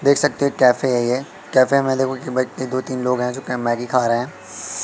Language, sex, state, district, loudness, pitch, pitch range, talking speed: Hindi, male, Madhya Pradesh, Katni, -19 LUFS, 130 Hz, 125-135 Hz, 225 wpm